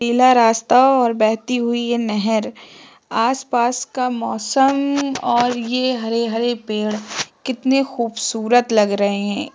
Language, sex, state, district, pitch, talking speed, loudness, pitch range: Hindi, female, Uttar Pradesh, Etah, 240 Hz, 140 wpm, -18 LUFS, 225-255 Hz